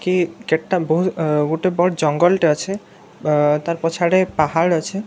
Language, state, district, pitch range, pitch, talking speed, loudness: Sambalpuri, Odisha, Sambalpur, 155-180 Hz, 170 Hz, 175 wpm, -18 LUFS